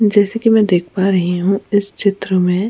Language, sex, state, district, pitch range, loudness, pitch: Hindi, female, Goa, North and South Goa, 185-205 Hz, -15 LUFS, 195 Hz